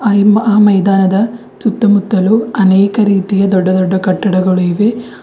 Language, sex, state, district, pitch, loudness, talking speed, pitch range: Kannada, female, Karnataka, Bidar, 200 Hz, -11 LUFS, 125 wpm, 190-215 Hz